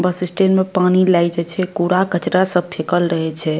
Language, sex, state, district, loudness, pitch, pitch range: Maithili, female, Bihar, Madhepura, -17 LUFS, 180 Hz, 170-185 Hz